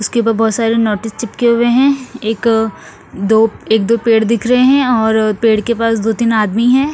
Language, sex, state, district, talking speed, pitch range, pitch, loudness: Hindi, female, Punjab, Fazilka, 215 wpm, 220-240 Hz, 225 Hz, -13 LUFS